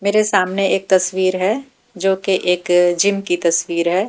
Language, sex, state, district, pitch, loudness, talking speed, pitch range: Hindi, female, Haryana, Jhajjar, 190 Hz, -17 LUFS, 175 wpm, 175-195 Hz